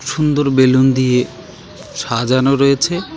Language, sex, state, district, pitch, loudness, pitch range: Bengali, male, West Bengal, Alipurduar, 130 Hz, -14 LUFS, 130-140 Hz